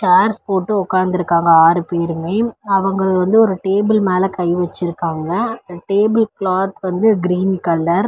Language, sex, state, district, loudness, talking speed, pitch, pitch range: Tamil, female, Tamil Nadu, Chennai, -16 LUFS, 140 wpm, 185 Hz, 175-200 Hz